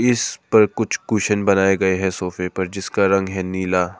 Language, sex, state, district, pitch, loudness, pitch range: Hindi, male, Arunachal Pradesh, Papum Pare, 95 Hz, -19 LUFS, 95-105 Hz